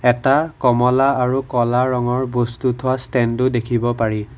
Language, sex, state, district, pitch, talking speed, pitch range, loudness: Assamese, male, Assam, Kamrup Metropolitan, 125 Hz, 150 wpm, 120-130 Hz, -18 LUFS